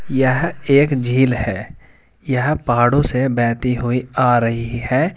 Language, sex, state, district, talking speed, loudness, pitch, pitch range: Hindi, male, Uttar Pradesh, Saharanpur, 140 wpm, -17 LUFS, 125 Hz, 120-135 Hz